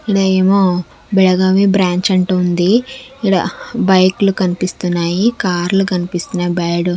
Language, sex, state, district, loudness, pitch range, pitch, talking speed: Telugu, female, Andhra Pradesh, Sri Satya Sai, -14 LUFS, 180-195 Hz, 185 Hz, 120 wpm